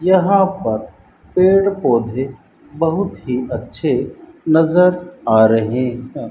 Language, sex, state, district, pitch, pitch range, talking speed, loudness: Hindi, female, Rajasthan, Bikaner, 155 Hz, 115-185 Hz, 105 wpm, -16 LUFS